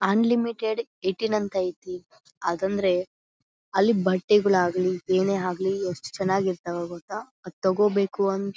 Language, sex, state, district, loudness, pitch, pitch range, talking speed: Kannada, female, Karnataka, Bellary, -25 LUFS, 190 Hz, 185-210 Hz, 125 wpm